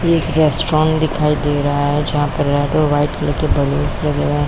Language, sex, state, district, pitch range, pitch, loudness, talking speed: Hindi, female, Bihar, Kishanganj, 145-155 Hz, 145 Hz, -16 LUFS, 215 wpm